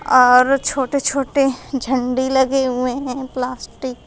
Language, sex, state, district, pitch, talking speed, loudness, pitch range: Hindi, female, Uttar Pradesh, Shamli, 260 Hz, 135 wpm, -18 LUFS, 255-270 Hz